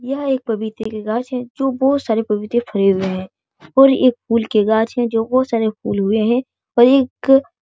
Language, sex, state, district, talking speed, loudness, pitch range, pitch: Hindi, female, Bihar, Jahanabad, 220 wpm, -17 LUFS, 220-260 Hz, 235 Hz